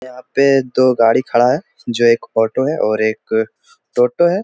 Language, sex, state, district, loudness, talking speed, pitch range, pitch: Hindi, male, Bihar, Jahanabad, -15 LUFS, 200 wpm, 110-130 Hz, 120 Hz